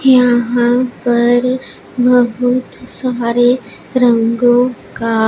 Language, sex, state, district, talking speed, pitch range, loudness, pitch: Hindi, female, Punjab, Pathankot, 80 wpm, 240-250 Hz, -14 LUFS, 245 Hz